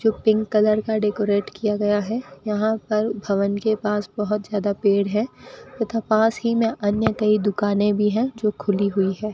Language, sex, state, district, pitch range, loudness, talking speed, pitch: Hindi, female, Rajasthan, Bikaner, 205-220 Hz, -22 LUFS, 195 wpm, 210 Hz